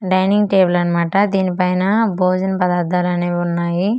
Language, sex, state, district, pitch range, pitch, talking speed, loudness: Telugu, female, Andhra Pradesh, Manyam, 175-195 Hz, 185 Hz, 135 wpm, -16 LUFS